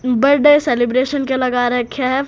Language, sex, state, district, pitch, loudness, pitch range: Hindi, female, Haryana, Rohtak, 255 Hz, -15 LUFS, 245-280 Hz